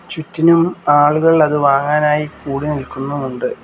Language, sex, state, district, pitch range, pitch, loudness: Malayalam, male, Kerala, Kollam, 140-160 Hz, 150 Hz, -15 LUFS